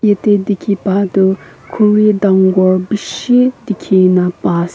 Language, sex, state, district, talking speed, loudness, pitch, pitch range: Nagamese, female, Nagaland, Kohima, 140 wpm, -13 LUFS, 195 Hz, 185-210 Hz